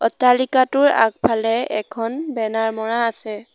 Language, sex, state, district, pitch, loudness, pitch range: Assamese, female, Assam, Sonitpur, 225 Hz, -19 LUFS, 225-255 Hz